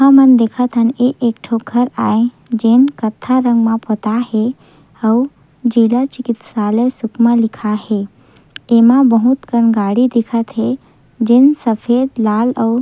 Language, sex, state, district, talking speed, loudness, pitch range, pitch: Chhattisgarhi, female, Chhattisgarh, Sukma, 140 wpm, -14 LUFS, 225-250 Hz, 235 Hz